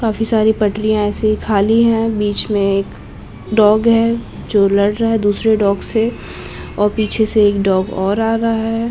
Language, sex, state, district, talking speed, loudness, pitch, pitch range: Hindi, female, Maharashtra, Aurangabad, 190 wpm, -15 LUFS, 215 Hz, 200-225 Hz